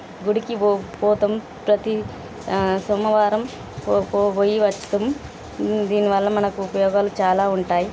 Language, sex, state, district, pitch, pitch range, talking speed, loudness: Telugu, female, Telangana, Nalgonda, 205 Hz, 195-210 Hz, 105 wpm, -21 LUFS